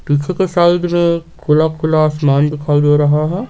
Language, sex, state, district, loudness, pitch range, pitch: Hindi, male, Bihar, Patna, -14 LUFS, 150-175 Hz, 155 Hz